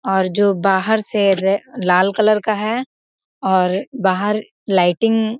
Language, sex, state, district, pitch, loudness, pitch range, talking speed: Hindi, female, Bihar, Gopalganj, 205 Hz, -17 LUFS, 190-220 Hz, 145 wpm